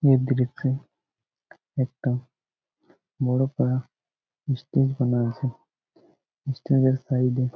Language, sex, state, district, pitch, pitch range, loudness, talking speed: Bengali, male, West Bengal, Jhargram, 130 Hz, 125-135 Hz, -25 LUFS, 85 wpm